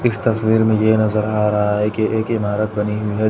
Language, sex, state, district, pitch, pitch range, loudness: Hindi, male, Uttar Pradesh, Etah, 110 Hz, 105-110 Hz, -17 LUFS